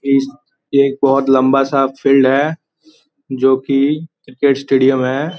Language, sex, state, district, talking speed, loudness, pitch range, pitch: Hindi, male, Bihar, Gopalganj, 135 wpm, -14 LUFS, 135-145 Hz, 135 Hz